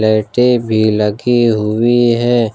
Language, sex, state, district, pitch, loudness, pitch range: Hindi, male, Jharkhand, Ranchi, 115 Hz, -13 LUFS, 110-120 Hz